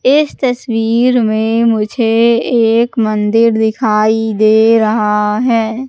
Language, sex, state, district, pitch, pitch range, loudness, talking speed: Hindi, female, Madhya Pradesh, Katni, 225 Hz, 220-235 Hz, -12 LUFS, 100 wpm